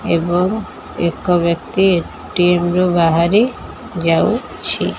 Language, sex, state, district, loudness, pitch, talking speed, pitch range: Odia, female, Odisha, Khordha, -16 LUFS, 175 Hz, 85 wpm, 170-185 Hz